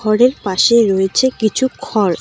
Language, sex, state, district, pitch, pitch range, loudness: Bengali, female, West Bengal, Cooch Behar, 220 Hz, 195-255 Hz, -14 LUFS